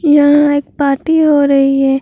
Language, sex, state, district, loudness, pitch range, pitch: Hindi, female, Bihar, Vaishali, -11 LUFS, 275-295 Hz, 285 Hz